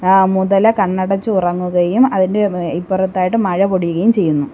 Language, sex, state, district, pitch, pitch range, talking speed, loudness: Malayalam, female, Kerala, Kollam, 190 Hz, 180-195 Hz, 120 wpm, -15 LUFS